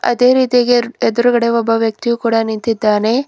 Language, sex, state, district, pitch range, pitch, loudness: Kannada, female, Karnataka, Bidar, 225-245 Hz, 235 Hz, -14 LUFS